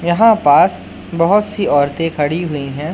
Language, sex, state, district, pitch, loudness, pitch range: Hindi, male, Madhya Pradesh, Katni, 165 Hz, -14 LUFS, 145-175 Hz